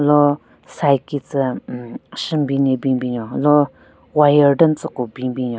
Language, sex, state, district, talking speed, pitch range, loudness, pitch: Rengma, female, Nagaland, Kohima, 195 wpm, 125-145 Hz, -18 LUFS, 140 Hz